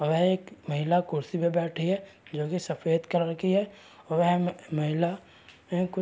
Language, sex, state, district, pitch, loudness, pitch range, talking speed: Hindi, male, Chhattisgarh, Raigarh, 175 Hz, -28 LUFS, 165-180 Hz, 180 wpm